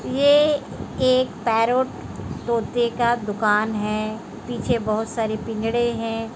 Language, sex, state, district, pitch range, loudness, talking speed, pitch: Hindi, female, Bihar, Begusarai, 220-240 Hz, -22 LUFS, 115 wpm, 230 Hz